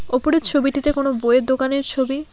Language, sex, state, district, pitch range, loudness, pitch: Bengali, female, West Bengal, Alipurduar, 260-285 Hz, -18 LUFS, 275 Hz